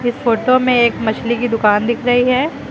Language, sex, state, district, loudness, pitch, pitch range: Hindi, female, Uttar Pradesh, Lucknow, -15 LUFS, 240 Hz, 230-250 Hz